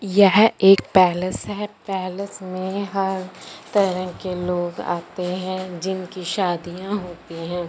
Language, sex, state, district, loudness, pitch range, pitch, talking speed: Hindi, female, Punjab, Fazilka, -21 LUFS, 180-195 Hz, 185 Hz, 125 wpm